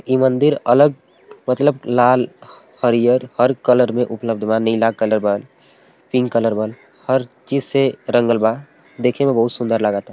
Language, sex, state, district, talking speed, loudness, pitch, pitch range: Bhojpuri, male, Uttar Pradesh, Ghazipur, 160 wpm, -17 LUFS, 125 Hz, 115-130 Hz